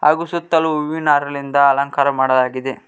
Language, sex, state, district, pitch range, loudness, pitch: Kannada, male, Karnataka, Koppal, 140-155 Hz, -17 LUFS, 145 Hz